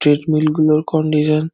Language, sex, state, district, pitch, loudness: Bengali, male, West Bengal, Dakshin Dinajpur, 155 Hz, -16 LUFS